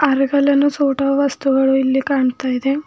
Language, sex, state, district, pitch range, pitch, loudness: Kannada, female, Karnataka, Bidar, 265-280 Hz, 275 Hz, -16 LUFS